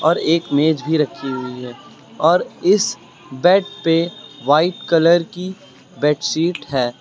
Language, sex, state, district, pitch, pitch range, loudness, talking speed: Hindi, male, Uttar Pradesh, Lucknow, 160 Hz, 145-175 Hz, -18 LUFS, 135 wpm